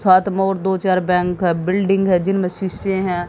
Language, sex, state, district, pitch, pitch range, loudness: Hindi, female, Haryana, Jhajjar, 190 Hz, 180-195 Hz, -18 LUFS